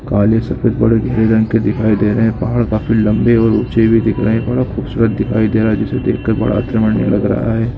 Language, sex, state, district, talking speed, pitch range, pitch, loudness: Hindi, male, Andhra Pradesh, Guntur, 225 wpm, 110-115 Hz, 110 Hz, -14 LUFS